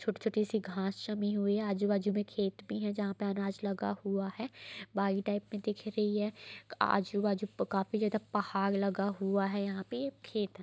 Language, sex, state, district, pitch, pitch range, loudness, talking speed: Hindi, female, Bihar, East Champaran, 205 Hz, 195-210 Hz, -34 LUFS, 195 wpm